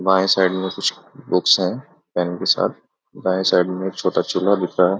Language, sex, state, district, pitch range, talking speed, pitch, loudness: Hindi, male, Bihar, Begusarai, 90-95 Hz, 215 wpm, 95 Hz, -19 LUFS